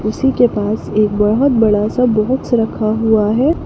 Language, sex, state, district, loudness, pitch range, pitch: Hindi, female, Jharkhand, Palamu, -14 LUFS, 215-250 Hz, 220 Hz